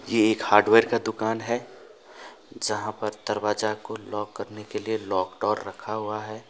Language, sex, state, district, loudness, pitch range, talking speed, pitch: Hindi, male, West Bengal, Alipurduar, -26 LUFS, 105-110 Hz, 175 wpm, 110 Hz